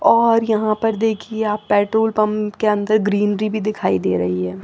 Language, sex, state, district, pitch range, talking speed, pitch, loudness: Hindi, female, Chandigarh, Chandigarh, 205-220 Hz, 195 wpm, 215 Hz, -18 LUFS